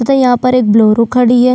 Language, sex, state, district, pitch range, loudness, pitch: Hindi, female, Chhattisgarh, Sukma, 230-250 Hz, -10 LUFS, 245 Hz